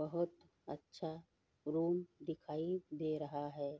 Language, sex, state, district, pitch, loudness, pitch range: Hindi, female, Bihar, Bhagalpur, 155 Hz, -42 LUFS, 150-170 Hz